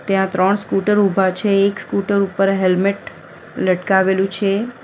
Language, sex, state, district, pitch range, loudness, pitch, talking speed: Gujarati, female, Gujarat, Valsad, 190-200 Hz, -17 LUFS, 195 Hz, 135 wpm